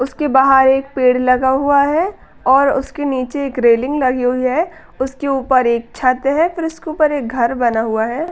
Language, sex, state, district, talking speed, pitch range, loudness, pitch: Hindi, female, Uttar Pradesh, Gorakhpur, 200 wpm, 255-290 Hz, -15 LUFS, 270 Hz